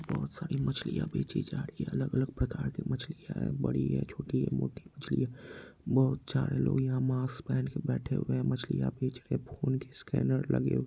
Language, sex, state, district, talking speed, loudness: Hindi, male, Bihar, Madhepura, 210 wpm, -33 LUFS